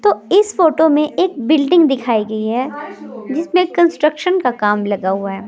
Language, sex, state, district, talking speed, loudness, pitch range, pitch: Hindi, female, Himachal Pradesh, Shimla, 175 wpm, -15 LUFS, 225-345 Hz, 300 Hz